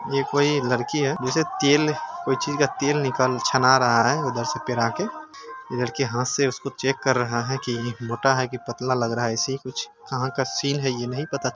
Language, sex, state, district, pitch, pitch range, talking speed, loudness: Hindi, male, Bihar, Saran, 130 Hz, 125-140 Hz, 240 wpm, -23 LUFS